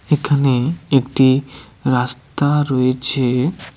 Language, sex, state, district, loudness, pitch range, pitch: Bengali, male, West Bengal, Cooch Behar, -17 LUFS, 125-145 Hz, 135 Hz